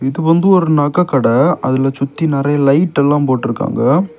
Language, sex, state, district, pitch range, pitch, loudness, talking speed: Tamil, male, Tamil Nadu, Kanyakumari, 135-175 Hz, 145 Hz, -13 LUFS, 145 wpm